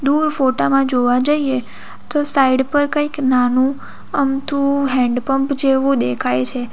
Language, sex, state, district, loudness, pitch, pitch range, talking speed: Gujarati, female, Gujarat, Valsad, -16 LUFS, 270 Hz, 255-280 Hz, 140 wpm